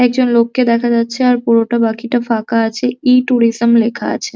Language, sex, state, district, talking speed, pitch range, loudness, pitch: Bengali, male, West Bengal, Jhargram, 190 wpm, 230-250 Hz, -14 LUFS, 235 Hz